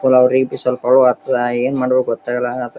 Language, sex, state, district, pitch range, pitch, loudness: Kannada, male, Karnataka, Gulbarga, 125-130 Hz, 125 Hz, -16 LUFS